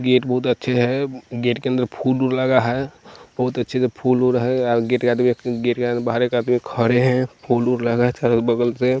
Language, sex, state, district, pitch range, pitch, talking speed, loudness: Hindi, male, Bihar, West Champaran, 120-125 Hz, 125 Hz, 215 wpm, -20 LUFS